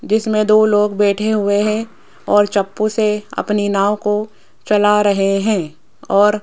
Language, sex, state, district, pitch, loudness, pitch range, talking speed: Hindi, female, Rajasthan, Jaipur, 210 Hz, -16 LUFS, 205-215 Hz, 160 wpm